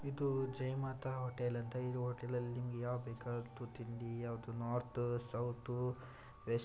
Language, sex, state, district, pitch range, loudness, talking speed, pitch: Kannada, male, Karnataka, Shimoga, 120-125 Hz, -42 LUFS, 145 wpm, 120 Hz